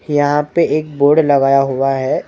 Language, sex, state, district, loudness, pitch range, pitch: Hindi, male, Maharashtra, Mumbai Suburban, -14 LUFS, 135-150 Hz, 145 Hz